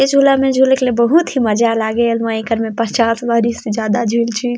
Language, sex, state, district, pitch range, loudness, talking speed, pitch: Sadri, female, Chhattisgarh, Jashpur, 225-255 Hz, -15 LUFS, 235 wpm, 235 Hz